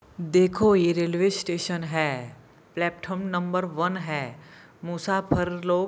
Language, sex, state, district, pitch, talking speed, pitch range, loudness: Hindi, male, Jharkhand, Jamtara, 175 Hz, 110 wpm, 160-185 Hz, -25 LUFS